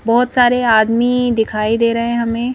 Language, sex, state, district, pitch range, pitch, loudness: Hindi, female, Madhya Pradesh, Bhopal, 230-245 Hz, 235 Hz, -14 LUFS